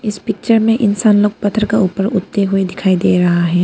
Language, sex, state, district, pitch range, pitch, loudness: Hindi, female, Arunachal Pradesh, Papum Pare, 190-215 Hz, 205 Hz, -14 LUFS